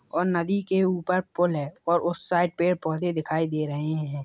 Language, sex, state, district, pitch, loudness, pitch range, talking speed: Hindi, male, Bihar, Purnia, 170 Hz, -26 LUFS, 155-180 Hz, 225 wpm